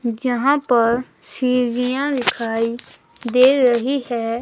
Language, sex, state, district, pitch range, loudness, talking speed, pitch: Hindi, female, Himachal Pradesh, Shimla, 235-260 Hz, -18 LUFS, 95 wpm, 250 Hz